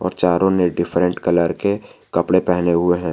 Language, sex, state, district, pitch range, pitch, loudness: Hindi, male, Jharkhand, Garhwa, 85-90 Hz, 90 Hz, -18 LUFS